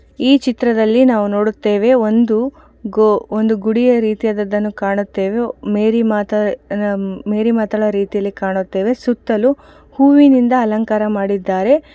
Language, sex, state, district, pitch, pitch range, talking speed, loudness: Kannada, female, Karnataka, Shimoga, 215 Hz, 205-245 Hz, 100 wpm, -15 LUFS